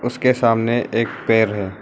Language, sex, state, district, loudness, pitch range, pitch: Hindi, male, Arunachal Pradesh, Lower Dibang Valley, -18 LUFS, 110-120 Hz, 115 Hz